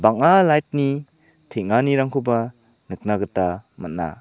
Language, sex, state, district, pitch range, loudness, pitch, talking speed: Garo, male, Meghalaya, South Garo Hills, 115-150 Hz, -20 LUFS, 135 Hz, 85 wpm